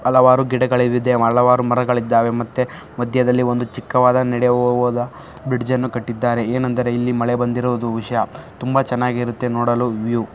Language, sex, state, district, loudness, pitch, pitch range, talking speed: Kannada, male, Karnataka, Shimoga, -18 LUFS, 125 Hz, 120-125 Hz, 120 wpm